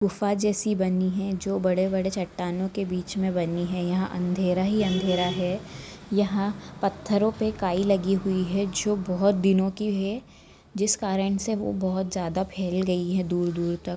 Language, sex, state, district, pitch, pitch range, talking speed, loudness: Hindi, female, Chhattisgarh, Bastar, 190 Hz, 180-200 Hz, 160 wpm, -26 LUFS